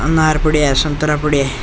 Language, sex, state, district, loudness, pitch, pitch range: Rajasthani, male, Rajasthan, Churu, -15 LUFS, 150 Hz, 145-155 Hz